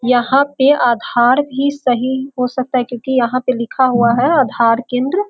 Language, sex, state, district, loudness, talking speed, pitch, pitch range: Hindi, female, Bihar, Sitamarhi, -15 LUFS, 180 wpm, 255 Hz, 245-265 Hz